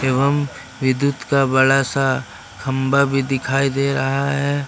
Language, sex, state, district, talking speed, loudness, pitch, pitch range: Hindi, male, Jharkhand, Ranchi, 140 wpm, -19 LUFS, 135 Hz, 130-140 Hz